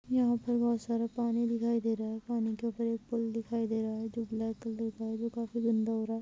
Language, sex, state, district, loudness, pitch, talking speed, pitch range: Hindi, female, Jharkhand, Jamtara, -33 LUFS, 230 Hz, 270 wpm, 225-235 Hz